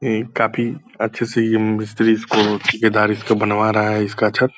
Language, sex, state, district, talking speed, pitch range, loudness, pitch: Hindi, male, Bihar, Purnia, 185 wpm, 105-115 Hz, -18 LUFS, 110 Hz